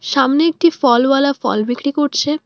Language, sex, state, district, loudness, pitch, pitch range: Bengali, female, West Bengal, Alipurduar, -15 LUFS, 280 Hz, 260-300 Hz